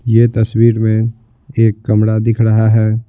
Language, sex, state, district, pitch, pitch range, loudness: Hindi, male, Bihar, Patna, 115 Hz, 110-115 Hz, -13 LUFS